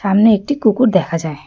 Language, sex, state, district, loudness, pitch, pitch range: Bengali, female, West Bengal, Darjeeling, -14 LUFS, 200 Hz, 165-220 Hz